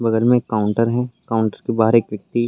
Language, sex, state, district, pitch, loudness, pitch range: Hindi, male, Uttar Pradesh, Varanasi, 115 Hz, -19 LUFS, 110-120 Hz